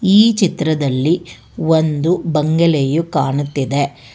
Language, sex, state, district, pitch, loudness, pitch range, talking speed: Kannada, female, Karnataka, Bangalore, 155 Hz, -16 LUFS, 140-170 Hz, 70 wpm